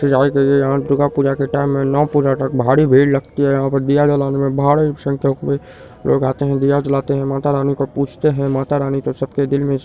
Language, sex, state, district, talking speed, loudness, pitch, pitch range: Hindi, male, Bihar, Supaul, 245 wpm, -16 LUFS, 140 Hz, 135-140 Hz